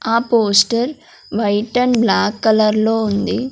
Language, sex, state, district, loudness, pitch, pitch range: Telugu, female, Andhra Pradesh, Sri Satya Sai, -16 LUFS, 225 Hz, 215-235 Hz